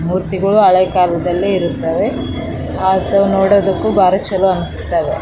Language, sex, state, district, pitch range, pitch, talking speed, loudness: Kannada, female, Karnataka, Raichur, 180-195 Hz, 190 Hz, 105 wpm, -14 LUFS